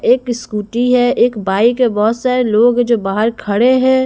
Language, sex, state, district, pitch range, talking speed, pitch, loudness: Hindi, female, Bihar, Patna, 215-250 Hz, 205 wpm, 240 Hz, -14 LUFS